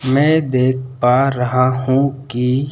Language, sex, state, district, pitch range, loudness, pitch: Hindi, male, Madhya Pradesh, Bhopal, 125-135 Hz, -16 LUFS, 130 Hz